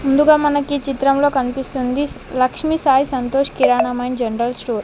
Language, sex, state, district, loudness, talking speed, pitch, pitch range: Telugu, female, Telangana, Mahabubabad, -17 LUFS, 150 wpm, 270 Hz, 250-285 Hz